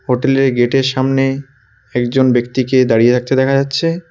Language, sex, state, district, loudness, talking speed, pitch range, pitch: Bengali, male, West Bengal, Cooch Behar, -14 LUFS, 160 wpm, 125-135 Hz, 130 Hz